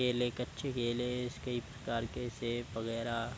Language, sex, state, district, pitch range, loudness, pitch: Hindi, male, Uttar Pradesh, Deoria, 115-125 Hz, -37 LUFS, 120 Hz